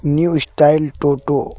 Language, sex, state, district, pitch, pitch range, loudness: Hindi, male, Jharkhand, Deoghar, 150 Hz, 145-155 Hz, -15 LUFS